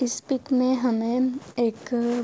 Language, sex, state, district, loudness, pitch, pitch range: Urdu, female, Andhra Pradesh, Anantapur, -25 LUFS, 245 Hz, 240-255 Hz